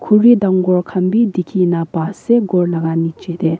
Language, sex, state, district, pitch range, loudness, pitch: Nagamese, female, Nagaland, Kohima, 165-205 Hz, -15 LUFS, 180 Hz